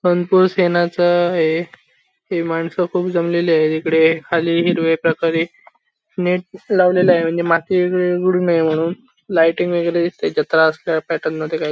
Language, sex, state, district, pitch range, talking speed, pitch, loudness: Marathi, male, Maharashtra, Sindhudurg, 165-180 Hz, 135 wpm, 170 Hz, -17 LUFS